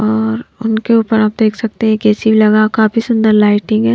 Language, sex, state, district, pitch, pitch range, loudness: Hindi, female, Maharashtra, Mumbai Suburban, 220 Hz, 215-225 Hz, -12 LUFS